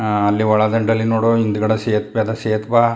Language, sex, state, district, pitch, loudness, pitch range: Kannada, male, Karnataka, Chamarajanagar, 110 Hz, -17 LUFS, 110-115 Hz